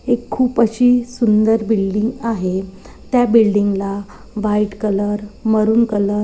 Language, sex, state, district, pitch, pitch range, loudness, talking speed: Marathi, female, Maharashtra, Nagpur, 215 Hz, 205-230 Hz, -17 LUFS, 135 wpm